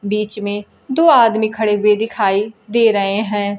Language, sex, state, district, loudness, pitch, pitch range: Hindi, female, Bihar, Kaimur, -15 LUFS, 210 Hz, 205-220 Hz